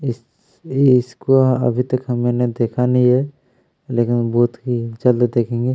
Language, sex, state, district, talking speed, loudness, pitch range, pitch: Hindi, male, Chhattisgarh, Kabirdham, 135 wpm, -17 LUFS, 120-130 Hz, 125 Hz